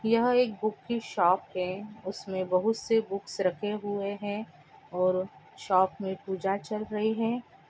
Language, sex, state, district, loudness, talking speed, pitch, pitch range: Hindi, female, Andhra Pradesh, Anantapur, -29 LUFS, 155 wpm, 200 Hz, 185-220 Hz